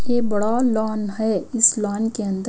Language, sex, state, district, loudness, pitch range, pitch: Hindi, female, Himachal Pradesh, Shimla, -20 LUFS, 210-230 Hz, 220 Hz